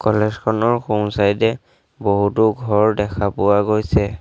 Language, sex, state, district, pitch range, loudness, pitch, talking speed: Assamese, male, Assam, Sonitpur, 100-110 Hz, -18 LUFS, 105 Hz, 140 wpm